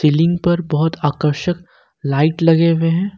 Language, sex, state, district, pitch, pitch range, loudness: Hindi, male, Jharkhand, Ranchi, 165 Hz, 150-175 Hz, -16 LUFS